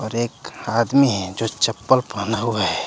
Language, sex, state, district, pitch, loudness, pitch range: Hindi, male, Jharkhand, Deoghar, 115 Hz, -20 LUFS, 110-120 Hz